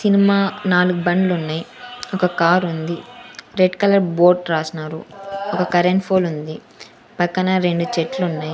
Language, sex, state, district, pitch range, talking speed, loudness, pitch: Telugu, female, Andhra Pradesh, Sri Satya Sai, 170-195 Hz, 110 wpm, -18 LUFS, 180 Hz